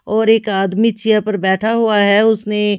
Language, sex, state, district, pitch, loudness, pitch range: Hindi, female, Haryana, Charkhi Dadri, 210 Hz, -14 LUFS, 205-220 Hz